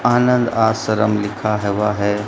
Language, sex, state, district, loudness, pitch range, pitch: Hindi, male, Rajasthan, Bikaner, -17 LUFS, 105-115 Hz, 105 Hz